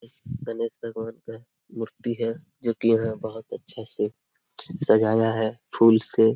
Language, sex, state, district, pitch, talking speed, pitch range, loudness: Hindi, male, Bihar, Jamui, 115 Hz, 140 wpm, 110-115 Hz, -25 LUFS